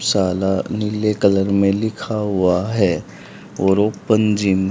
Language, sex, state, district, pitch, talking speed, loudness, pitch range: Hindi, male, Haryana, Rohtak, 100 Hz, 140 wpm, -18 LUFS, 95-105 Hz